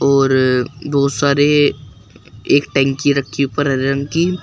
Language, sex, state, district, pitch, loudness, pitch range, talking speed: Hindi, male, Uttar Pradesh, Shamli, 140 Hz, -15 LUFS, 135-145 Hz, 150 wpm